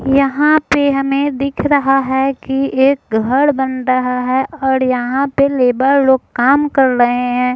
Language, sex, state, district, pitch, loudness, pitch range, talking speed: Hindi, female, Bihar, Gaya, 270 Hz, -14 LUFS, 255-275 Hz, 165 wpm